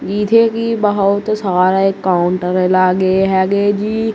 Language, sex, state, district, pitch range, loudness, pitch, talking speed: Punjabi, female, Punjab, Kapurthala, 185-210 Hz, -14 LUFS, 195 Hz, 115 wpm